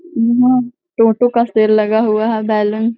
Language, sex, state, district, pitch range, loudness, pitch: Hindi, female, Bihar, Gaya, 220-245 Hz, -14 LUFS, 225 Hz